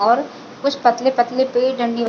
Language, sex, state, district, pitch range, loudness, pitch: Hindi, female, Chhattisgarh, Bilaspur, 240-260 Hz, -18 LUFS, 245 Hz